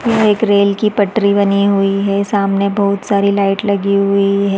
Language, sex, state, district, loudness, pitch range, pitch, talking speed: Hindi, female, Chhattisgarh, Balrampur, -14 LUFS, 200-205 Hz, 200 Hz, 195 wpm